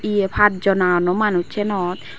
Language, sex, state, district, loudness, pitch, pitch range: Chakma, female, Tripura, Dhalai, -19 LUFS, 195 Hz, 180-210 Hz